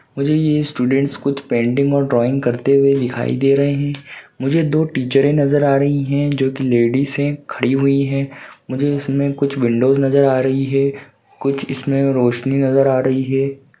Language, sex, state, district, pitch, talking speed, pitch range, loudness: Hindi, male, Uttarakhand, Uttarkashi, 140 Hz, 185 wpm, 135-140 Hz, -17 LUFS